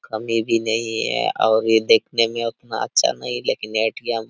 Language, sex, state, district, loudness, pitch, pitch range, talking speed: Hindi, male, Jharkhand, Sahebganj, -20 LUFS, 115 Hz, 110-115 Hz, 195 wpm